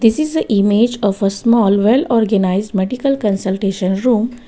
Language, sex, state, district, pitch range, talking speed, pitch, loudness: English, female, Gujarat, Valsad, 195-240 Hz, 160 wpm, 215 Hz, -15 LUFS